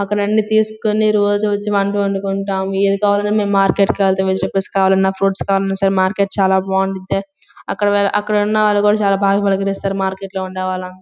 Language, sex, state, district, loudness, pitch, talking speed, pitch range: Telugu, female, Andhra Pradesh, Guntur, -16 LUFS, 195 Hz, 175 wpm, 190-205 Hz